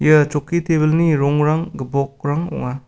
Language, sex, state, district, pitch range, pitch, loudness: Garo, male, Meghalaya, South Garo Hills, 140-160 Hz, 150 Hz, -18 LUFS